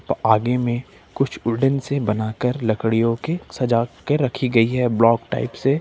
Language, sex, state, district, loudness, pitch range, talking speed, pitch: Hindi, male, Jharkhand, Ranchi, -20 LUFS, 115-135 Hz, 165 wpm, 120 Hz